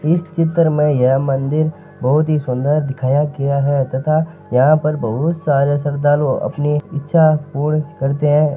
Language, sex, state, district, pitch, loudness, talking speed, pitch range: Marwari, male, Rajasthan, Nagaur, 145 Hz, -16 LUFS, 155 wpm, 140-155 Hz